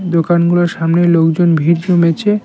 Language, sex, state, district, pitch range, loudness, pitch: Bengali, male, West Bengal, Cooch Behar, 165-175 Hz, -12 LUFS, 170 Hz